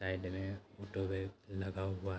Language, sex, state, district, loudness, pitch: Hindi, male, Bihar, Sitamarhi, -41 LUFS, 95 Hz